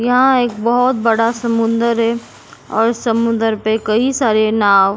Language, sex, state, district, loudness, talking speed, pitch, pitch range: Hindi, female, Goa, North and South Goa, -15 LUFS, 155 wpm, 230 Hz, 220-235 Hz